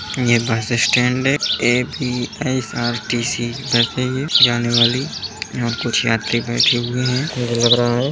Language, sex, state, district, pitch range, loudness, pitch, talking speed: Hindi, male, Bihar, East Champaran, 120-125 Hz, -17 LUFS, 120 Hz, 200 wpm